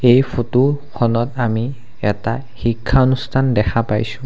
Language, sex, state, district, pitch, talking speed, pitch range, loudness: Assamese, male, Assam, Sonitpur, 120 Hz, 115 wpm, 115-130 Hz, -18 LUFS